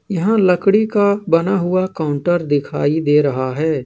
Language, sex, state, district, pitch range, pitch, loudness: Hindi, male, Jharkhand, Ranchi, 150-195 Hz, 175 Hz, -16 LUFS